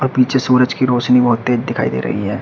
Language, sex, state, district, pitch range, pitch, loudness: Hindi, male, Uttar Pradesh, Shamli, 120-125 Hz, 125 Hz, -15 LUFS